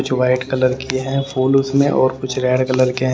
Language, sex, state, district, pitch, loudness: Hindi, male, Haryana, Jhajjar, 130 Hz, -17 LUFS